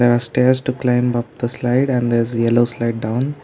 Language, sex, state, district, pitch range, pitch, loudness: English, male, Karnataka, Bangalore, 120-125 Hz, 120 Hz, -18 LUFS